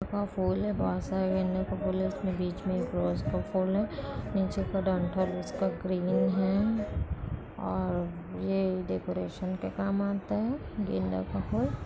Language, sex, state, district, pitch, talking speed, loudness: Hindi, female, Bihar, Kishanganj, 185 Hz, 165 wpm, -31 LUFS